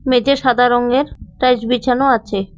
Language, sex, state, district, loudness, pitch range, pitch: Bengali, female, West Bengal, Cooch Behar, -15 LUFS, 245-260 Hz, 250 Hz